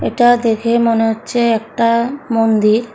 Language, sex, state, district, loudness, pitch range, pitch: Bengali, female, Tripura, South Tripura, -14 LUFS, 225-235 Hz, 230 Hz